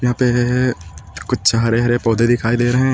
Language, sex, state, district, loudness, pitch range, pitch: Hindi, male, Uttar Pradesh, Lucknow, -16 LUFS, 115-125 Hz, 120 Hz